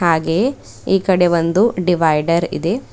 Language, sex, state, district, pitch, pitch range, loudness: Kannada, female, Karnataka, Bidar, 175 Hz, 165-190 Hz, -16 LUFS